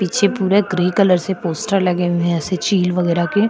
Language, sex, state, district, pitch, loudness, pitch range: Hindi, female, Goa, North and South Goa, 180 Hz, -17 LUFS, 175-195 Hz